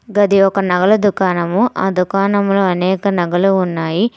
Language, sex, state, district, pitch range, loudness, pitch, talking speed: Telugu, female, Telangana, Hyderabad, 180-200 Hz, -14 LUFS, 195 Hz, 130 wpm